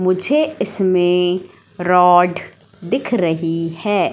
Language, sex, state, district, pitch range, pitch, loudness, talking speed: Hindi, female, Madhya Pradesh, Katni, 175-195 Hz, 180 Hz, -16 LUFS, 85 wpm